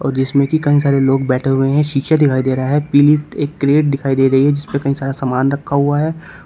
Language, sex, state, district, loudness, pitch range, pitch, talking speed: Hindi, male, Uttar Pradesh, Shamli, -15 LUFS, 135-145 Hz, 140 Hz, 270 wpm